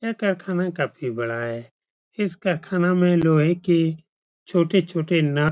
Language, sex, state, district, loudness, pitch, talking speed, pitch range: Hindi, male, Uttar Pradesh, Etah, -22 LUFS, 170 Hz, 140 wpm, 155-180 Hz